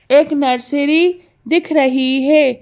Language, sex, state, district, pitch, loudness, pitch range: Hindi, female, Madhya Pradesh, Bhopal, 285 Hz, -14 LUFS, 265-305 Hz